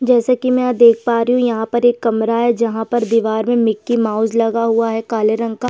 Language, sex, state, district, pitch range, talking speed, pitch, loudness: Hindi, female, Chhattisgarh, Sukma, 225-240 Hz, 250 wpm, 230 Hz, -15 LUFS